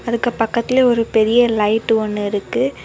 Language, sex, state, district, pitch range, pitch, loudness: Tamil, female, Tamil Nadu, Kanyakumari, 220-240 Hz, 230 Hz, -17 LUFS